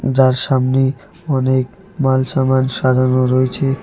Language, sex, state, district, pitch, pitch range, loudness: Bengali, male, West Bengal, Alipurduar, 130 Hz, 130-135 Hz, -16 LUFS